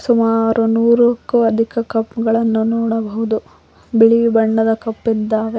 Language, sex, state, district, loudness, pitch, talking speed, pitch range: Kannada, female, Karnataka, Koppal, -16 LUFS, 225 Hz, 95 wpm, 225-230 Hz